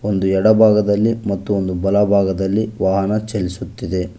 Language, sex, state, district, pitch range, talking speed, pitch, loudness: Kannada, male, Karnataka, Koppal, 95-110 Hz, 100 wpm, 100 Hz, -17 LUFS